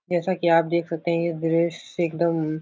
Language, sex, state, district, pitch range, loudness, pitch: Hindi, male, Bihar, Supaul, 165-170 Hz, -23 LUFS, 170 Hz